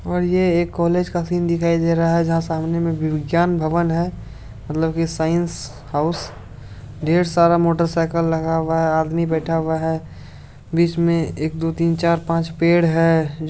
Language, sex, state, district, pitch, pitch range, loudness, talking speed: Hindi, male, Bihar, Supaul, 165 Hz, 160-170 Hz, -19 LUFS, 185 wpm